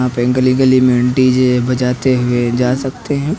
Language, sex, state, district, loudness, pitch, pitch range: Hindi, male, Haryana, Rohtak, -13 LUFS, 125 Hz, 125-130 Hz